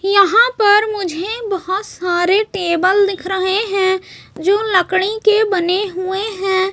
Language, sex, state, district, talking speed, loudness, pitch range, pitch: Hindi, female, Chhattisgarh, Raipur, 135 wpm, -16 LUFS, 375-415 Hz, 385 Hz